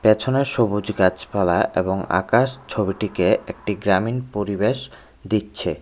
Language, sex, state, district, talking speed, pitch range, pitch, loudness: Bengali, male, Tripura, West Tripura, 105 wpm, 100-125 Hz, 105 Hz, -21 LUFS